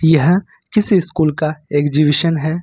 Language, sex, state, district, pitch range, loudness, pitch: Hindi, male, Jharkhand, Ranchi, 150-175 Hz, -15 LUFS, 160 Hz